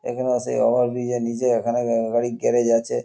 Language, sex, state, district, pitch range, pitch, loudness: Bengali, male, West Bengal, North 24 Parganas, 115-125 Hz, 120 Hz, -21 LUFS